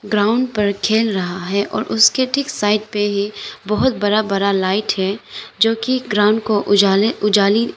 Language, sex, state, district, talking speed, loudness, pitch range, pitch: Hindi, female, Arunachal Pradesh, Lower Dibang Valley, 170 wpm, -17 LUFS, 200-220 Hz, 210 Hz